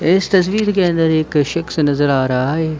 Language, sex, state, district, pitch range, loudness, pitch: Hindi, male, Jharkhand, Sahebganj, 145-185 Hz, -16 LUFS, 160 Hz